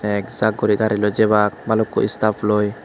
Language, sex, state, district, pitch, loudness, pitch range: Chakma, male, Tripura, West Tripura, 105 Hz, -19 LUFS, 105-110 Hz